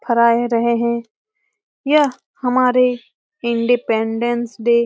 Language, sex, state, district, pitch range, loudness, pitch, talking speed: Hindi, female, Bihar, Jamui, 235-270 Hz, -17 LUFS, 240 Hz, 100 wpm